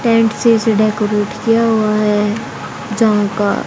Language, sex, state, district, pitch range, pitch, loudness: Hindi, female, Haryana, Jhajjar, 210-225 Hz, 215 Hz, -14 LUFS